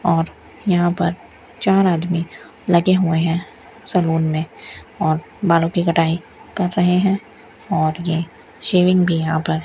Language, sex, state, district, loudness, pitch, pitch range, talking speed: Hindi, female, Rajasthan, Bikaner, -19 LUFS, 170 Hz, 165-180 Hz, 150 wpm